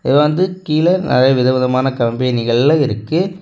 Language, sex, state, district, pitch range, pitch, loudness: Tamil, male, Tamil Nadu, Kanyakumari, 125-165 Hz, 135 Hz, -15 LUFS